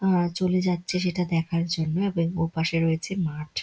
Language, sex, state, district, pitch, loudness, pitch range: Bengali, female, West Bengal, Dakshin Dinajpur, 170 Hz, -26 LUFS, 165-180 Hz